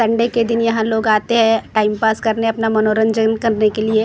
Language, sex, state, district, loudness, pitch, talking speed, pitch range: Hindi, female, Maharashtra, Gondia, -16 LUFS, 225 Hz, 280 wpm, 220-230 Hz